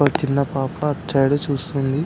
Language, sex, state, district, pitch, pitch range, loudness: Telugu, male, Telangana, Karimnagar, 140 Hz, 135-145 Hz, -21 LUFS